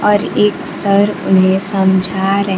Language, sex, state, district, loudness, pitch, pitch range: Hindi, male, Bihar, Kaimur, -13 LUFS, 195 Hz, 190-200 Hz